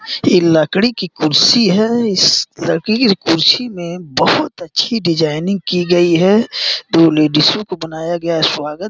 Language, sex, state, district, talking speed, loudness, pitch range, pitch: Hindi, male, Uttar Pradesh, Gorakhpur, 160 wpm, -13 LUFS, 165-215 Hz, 175 Hz